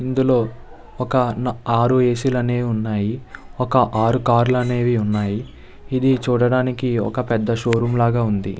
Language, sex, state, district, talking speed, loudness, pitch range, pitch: Telugu, male, Andhra Pradesh, Visakhapatnam, 140 wpm, -19 LUFS, 115-125 Hz, 120 Hz